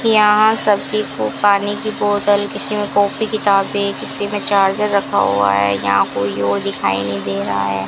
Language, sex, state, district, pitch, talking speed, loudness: Hindi, female, Rajasthan, Bikaner, 200 Hz, 175 wpm, -16 LUFS